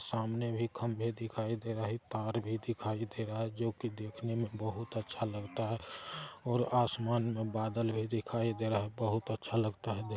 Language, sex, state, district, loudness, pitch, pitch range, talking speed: Hindi, male, Bihar, Araria, -36 LUFS, 115 Hz, 110-115 Hz, 210 wpm